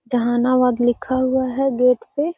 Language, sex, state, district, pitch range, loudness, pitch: Magahi, female, Bihar, Gaya, 245-260 Hz, -18 LUFS, 250 Hz